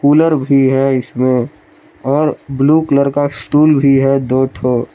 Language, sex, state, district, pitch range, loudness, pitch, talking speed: Hindi, male, Jharkhand, Palamu, 130-145 Hz, -13 LUFS, 135 Hz, 155 wpm